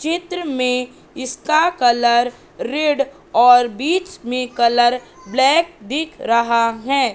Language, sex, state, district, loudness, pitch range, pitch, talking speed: Hindi, female, Madhya Pradesh, Katni, -17 LUFS, 240-305 Hz, 255 Hz, 110 wpm